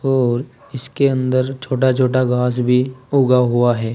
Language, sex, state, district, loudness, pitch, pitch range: Hindi, male, Uttar Pradesh, Saharanpur, -17 LUFS, 130 Hz, 125-130 Hz